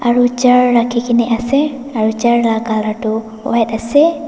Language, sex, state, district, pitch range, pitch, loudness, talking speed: Nagamese, female, Nagaland, Dimapur, 225-250 Hz, 235 Hz, -14 LUFS, 170 wpm